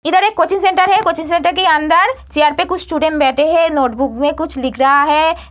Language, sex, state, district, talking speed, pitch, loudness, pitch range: Hindi, female, Bihar, Muzaffarpur, 230 wpm, 320 Hz, -13 LUFS, 285-350 Hz